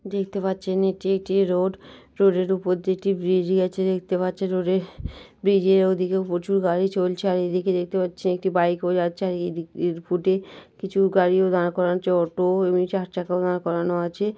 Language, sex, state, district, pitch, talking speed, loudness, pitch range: Bengali, female, West Bengal, Jhargram, 185 Hz, 190 wpm, -23 LUFS, 180-190 Hz